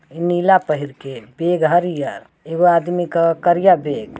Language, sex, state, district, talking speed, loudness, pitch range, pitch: Bhojpuri, male, Uttar Pradesh, Ghazipur, 155 wpm, -17 LUFS, 150-175 Hz, 170 Hz